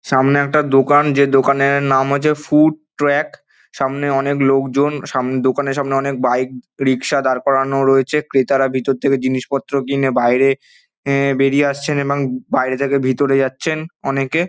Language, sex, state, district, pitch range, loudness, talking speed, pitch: Bengali, male, West Bengal, Dakshin Dinajpur, 135-140 Hz, -16 LUFS, 155 wpm, 135 Hz